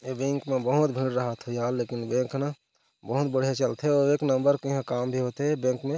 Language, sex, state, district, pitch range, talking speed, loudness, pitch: Chhattisgarhi, male, Chhattisgarh, Korba, 125-140 Hz, 250 wpm, -27 LUFS, 130 Hz